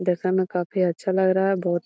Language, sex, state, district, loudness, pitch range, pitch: Magahi, female, Bihar, Gaya, -23 LUFS, 180-190 Hz, 185 Hz